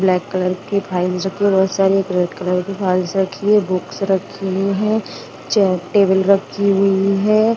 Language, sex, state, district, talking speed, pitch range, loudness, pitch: Hindi, female, Uttar Pradesh, Budaun, 180 wpm, 185-200 Hz, -17 LUFS, 195 Hz